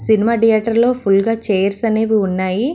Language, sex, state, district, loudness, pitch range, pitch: Telugu, female, Andhra Pradesh, Visakhapatnam, -15 LUFS, 200-230 Hz, 220 Hz